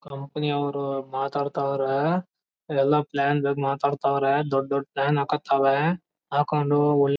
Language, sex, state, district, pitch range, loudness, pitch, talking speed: Kannada, male, Karnataka, Chamarajanagar, 140-145 Hz, -24 LUFS, 140 Hz, 100 wpm